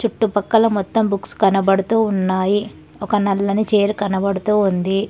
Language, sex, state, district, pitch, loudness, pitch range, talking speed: Telugu, female, Telangana, Hyderabad, 205 Hz, -18 LUFS, 195-215 Hz, 120 wpm